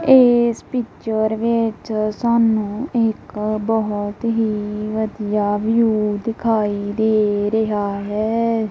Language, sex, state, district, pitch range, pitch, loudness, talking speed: Punjabi, female, Punjab, Kapurthala, 210-230 Hz, 220 Hz, -19 LUFS, 90 wpm